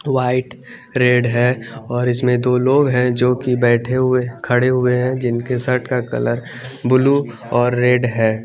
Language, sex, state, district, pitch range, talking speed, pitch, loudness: Hindi, male, Chandigarh, Chandigarh, 120-130 Hz, 165 wpm, 125 Hz, -17 LUFS